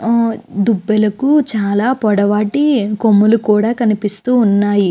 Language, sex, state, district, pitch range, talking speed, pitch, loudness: Telugu, female, Andhra Pradesh, Guntur, 205-235 Hz, 100 wpm, 215 Hz, -14 LUFS